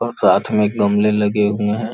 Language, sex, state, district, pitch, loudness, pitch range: Hindi, male, Uttar Pradesh, Gorakhpur, 105 Hz, -17 LUFS, 105-110 Hz